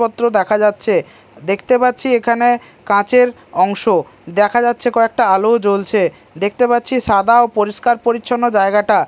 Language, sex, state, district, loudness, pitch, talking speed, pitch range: Bengali, male, Odisha, Malkangiri, -15 LUFS, 230 Hz, 130 wpm, 205-240 Hz